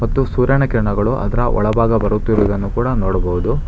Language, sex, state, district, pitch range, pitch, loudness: Kannada, male, Karnataka, Bangalore, 100-120 Hz, 110 Hz, -17 LUFS